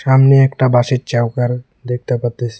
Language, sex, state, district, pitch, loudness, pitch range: Bengali, male, West Bengal, Alipurduar, 125 Hz, -15 LUFS, 120-130 Hz